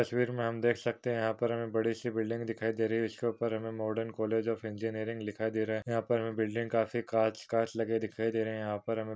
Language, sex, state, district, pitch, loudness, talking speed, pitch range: Hindi, male, Maharashtra, Pune, 115 Hz, -33 LUFS, 290 wpm, 110-115 Hz